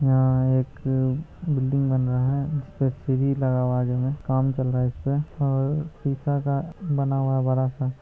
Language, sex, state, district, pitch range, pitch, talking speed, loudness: Hindi, male, Bihar, Araria, 130-140 Hz, 135 Hz, 180 wpm, -24 LUFS